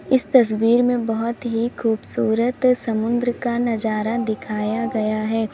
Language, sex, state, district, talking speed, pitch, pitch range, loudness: Hindi, female, Uttar Pradesh, Lalitpur, 130 wpm, 230 Hz, 220-240 Hz, -20 LUFS